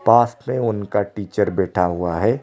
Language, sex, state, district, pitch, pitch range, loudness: Hindi, male, Odisha, Khordha, 105 Hz, 95-115 Hz, -20 LUFS